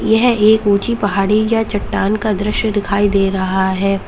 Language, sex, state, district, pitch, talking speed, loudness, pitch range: Hindi, female, Uttar Pradesh, Lalitpur, 205 Hz, 175 wpm, -15 LUFS, 195-220 Hz